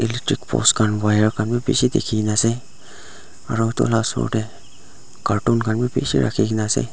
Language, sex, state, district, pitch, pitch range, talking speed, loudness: Nagamese, male, Nagaland, Dimapur, 115 Hz, 105-120 Hz, 175 wpm, -19 LUFS